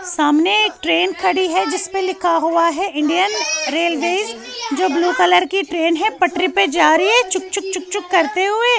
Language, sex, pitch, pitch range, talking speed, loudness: Urdu, female, 365 Hz, 335-390 Hz, 190 wpm, -16 LUFS